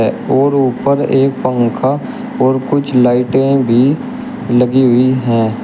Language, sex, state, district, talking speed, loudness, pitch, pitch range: Hindi, male, Uttar Pradesh, Shamli, 115 wpm, -13 LUFS, 130 Hz, 125-140 Hz